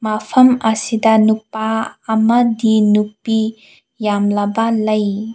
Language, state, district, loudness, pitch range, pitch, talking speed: Manipuri, Manipur, Imphal West, -15 LUFS, 215-225 Hz, 220 Hz, 80 wpm